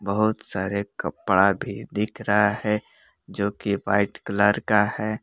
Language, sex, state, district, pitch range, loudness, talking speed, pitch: Hindi, male, Jharkhand, Palamu, 100-105 Hz, -23 LUFS, 150 wpm, 105 Hz